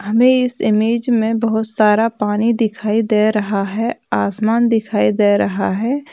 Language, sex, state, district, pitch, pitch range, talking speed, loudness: Hindi, female, Bihar, Jamui, 220 Hz, 210-230 Hz, 155 wpm, -16 LUFS